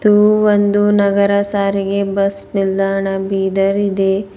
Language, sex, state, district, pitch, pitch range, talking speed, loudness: Kannada, female, Karnataka, Bidar, 200 Hz, 195-205 Hz, 110 wpm, -15 LUFS